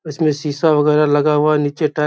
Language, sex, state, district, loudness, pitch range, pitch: Hindi, male, Bihar, Vaishali, -16 LUFS, 150-155 Hz, 150 Hz